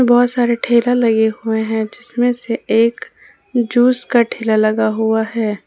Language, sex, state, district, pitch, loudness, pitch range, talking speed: Hindi, female, Jharkhand, Ranchi, 230 Hz, -16 LUFS, 220-245 Hz, 160 wpm